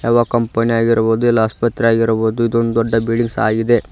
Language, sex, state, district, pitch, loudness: Kannada, male, Karnataka, Koppal, 115 Hz, -16 LUFS